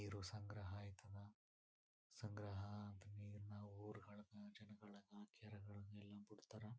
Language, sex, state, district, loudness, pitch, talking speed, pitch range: Kannada, male, Karnataka, Chamarajanagar, -57 LUFS, 105 Hz, 105 wpm, 100-105 Hz